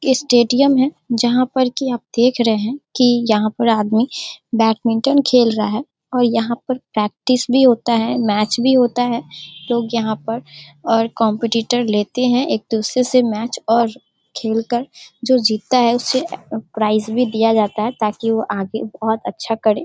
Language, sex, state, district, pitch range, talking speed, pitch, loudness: Hindi, female, Bihar, Darbhanga, 220-250 Hz, 170 wpm, 235 Hz, -17 LUFS